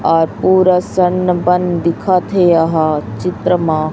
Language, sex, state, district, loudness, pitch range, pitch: Hindi, female, Chhattisgarh, Raipur, -14 LUFS, 165-180 Hz, 180 Hz